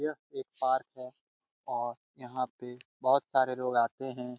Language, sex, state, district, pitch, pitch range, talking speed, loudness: Hindi, male, Jharkhand, Jamtara, 130 Hz, 125-135 Hz, 165 wpm, -32 LUFS